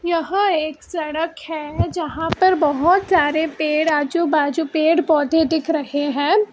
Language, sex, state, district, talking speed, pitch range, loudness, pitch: Hindi, female, Karnataka, Bangalore, 145 wpm, 305-340 Hz, -19 LUFS, 320 Hz